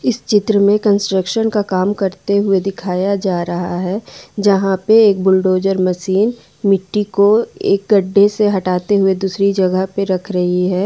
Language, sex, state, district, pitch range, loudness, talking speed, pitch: Hindi, female, Jharkhand, Ranchi, 185-205 Hz, -15 LUFS, 165 wpm, 195 Hz